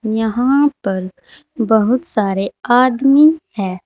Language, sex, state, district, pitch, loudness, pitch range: Hindi, female, Uttar Pradesh, Saharanpur, 240 Hz, -15 LUFS, 205-270 Hz